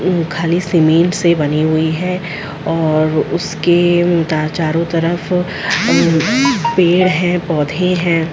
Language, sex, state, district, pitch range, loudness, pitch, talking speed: Hindi, female, Chhattisgarh, Sarguja, 160-180 Hz, -14 LUFS, 170 Hz, 110 wpm